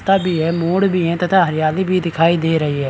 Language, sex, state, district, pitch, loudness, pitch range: Hindi, male, Chhattisgarh, Rajnandgaon, 170 Hz, -16 LUFS, 160-185 Hz